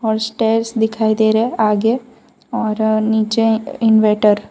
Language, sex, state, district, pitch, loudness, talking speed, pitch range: Hindi, female, Gujarat, Valsad, 220 Hz, -16 LUFS, 145 wpm, 220-230 Hz